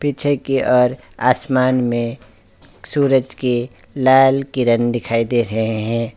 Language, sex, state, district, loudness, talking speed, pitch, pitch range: Hindi, male, West Bengal, Alipurduar, -17 LUFS, 125 wpm, 125 Hz, 115-130 Hz